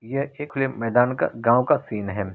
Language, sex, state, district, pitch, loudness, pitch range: Hindi, male, Bihar, Araria, 125 Hz, -23 LUFS, 110-135 Hz